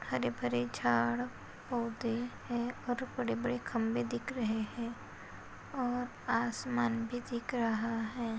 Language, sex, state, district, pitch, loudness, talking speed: Hindi, female, Maharashtra, Sindhudurg, 230 Hz, -35 LUFS, 130 wpm